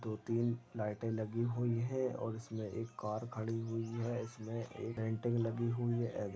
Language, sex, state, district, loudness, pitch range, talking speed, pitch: Hindi, male, Chhattisgarh, Balrampur, -39 LUFS, 110-120 Hz, 170 wpm, 115 Hz